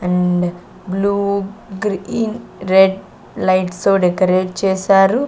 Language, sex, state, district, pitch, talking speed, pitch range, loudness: Telugu, female, Andhra Pradesh, Sri Satya Sai, 190 Hz, 90 wpm, 185-200 Hz, -16 LUFS